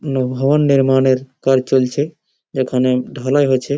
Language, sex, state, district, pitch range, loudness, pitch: Bengali, male, West Bengal, Malda, 130-140 Hz, -16 LUFS, 130 Hz